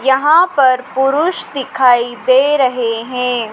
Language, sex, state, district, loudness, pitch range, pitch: Hindi, female, Madhya Pradesh, Dhar, -13 LUFS, 250-275 Hz, 260 Hz